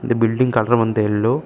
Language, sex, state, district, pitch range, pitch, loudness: Tamil, male, Tamil Nadu, Kanyakumari, 110-120 Hz, 115 Hz, -17 LUFS